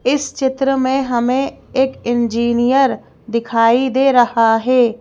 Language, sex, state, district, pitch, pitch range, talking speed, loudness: Hindi, female, Madhya Pradesh, Bhopal, 250 Hz, 235-265 Hz, 120 wpm, -15 LUFS